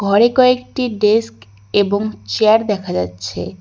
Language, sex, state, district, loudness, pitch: Bengali, female, West Bengal, Cooch Behar, -16 LUFS, 205 Hz